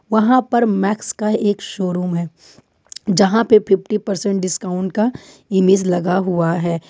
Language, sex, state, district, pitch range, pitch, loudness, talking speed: Hindi, female, Jharkhand, Ranchi, 180-215 Hz, 195 Hz, -17 LUFS, 150 wpm